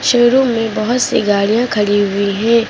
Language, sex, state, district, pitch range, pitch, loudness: Hindi, female, Uttar Pradesh, Lucknow, 205-240 Hz, 225 Hz, -14 LUFS